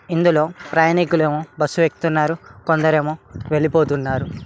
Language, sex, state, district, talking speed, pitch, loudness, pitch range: Telugu, male, Telangana, Mahabubabad, 80 wpm, 155 Hz, -19 LUFS, 150-165 Hz